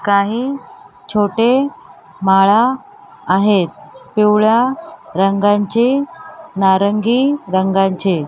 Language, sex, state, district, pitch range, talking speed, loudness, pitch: Marathi, female, Maharashtra, Mumbai Suburban, 195-260 Hz, 60 wpm, -15 LUFS, 210 Hz